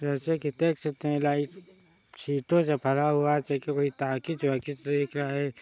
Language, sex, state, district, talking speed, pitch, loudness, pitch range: Hindi, male, Chhattisgarh, Sarguja, 200 wpm, 145 Hz, -28 LUFS, 140-150 Hz